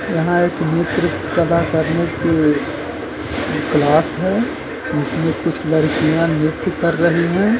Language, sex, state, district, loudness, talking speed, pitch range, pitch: Hindi, male, Uttar Pradesh, Gorakhpur, -18 LUFS, 120 wpm, 155-170 Hz, 165 Hz